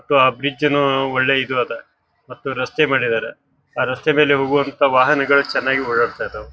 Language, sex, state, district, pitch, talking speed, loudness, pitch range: Kannada, male, Karnataka, Bijapur, 140 Hz, 155 wpm, -17 LUFS, 130-150 Hz